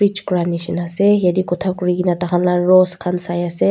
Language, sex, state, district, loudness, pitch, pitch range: Nagamese, female, Nagaland, Dimapur, -17 LUFS, 180 Hz, 175-185 Hz